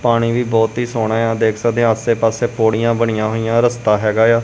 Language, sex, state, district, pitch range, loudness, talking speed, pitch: Punjabi, male, Punjab, Kapurthala, 110-120 Hz, -16 LUFS, 230 wpm, 115 Hz